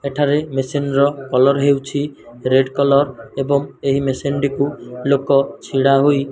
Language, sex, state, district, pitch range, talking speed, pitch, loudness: Odia, male, Odisha, Malkangiri, 135-140 Hz, 140 wpm, 140 Hz, -17 LUFS